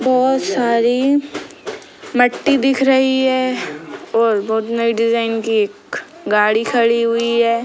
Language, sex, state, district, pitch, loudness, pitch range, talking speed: Hindi, female, Bihar, Sitamarhi, 235 Hz, -16 LUFS, 230-260 Hz, 125 wpm